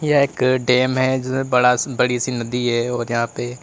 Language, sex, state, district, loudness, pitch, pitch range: Hindi, male, Uttar Pradesh, Lalitpur, -19 LUFS, 125 Hz, 120-130 Hz